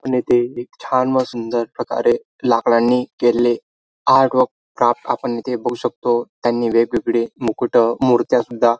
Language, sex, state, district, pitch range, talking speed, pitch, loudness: Marathi, male, Maharashtra, Dhule, 120-125 Hz, 145 wpm, 120 Hz, -18 LUFS